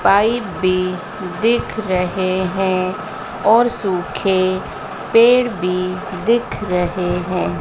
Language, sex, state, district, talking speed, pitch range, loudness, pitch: Hindi, female, Madhya Pradesh, Dhar, 95 wpm, 185-220 Hz, -18 LUFS, 185 Hz